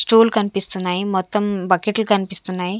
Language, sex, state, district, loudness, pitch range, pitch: Telugu, female, Andhra Pradesh, Sri Satya Sai, -19 LUFS, 185-210 Hz, 195 Hz